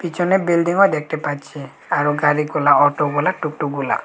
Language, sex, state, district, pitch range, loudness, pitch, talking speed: Bengali, male, Tripura, Unakoti, 145-170 Hz, -18 LUFS, 150 Hz, 120 wpm